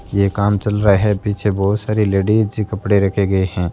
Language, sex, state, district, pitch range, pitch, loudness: Hindi, male, Rajasthan, Bikaner, 100-105 Hz, 100 Hz, -17 LUFS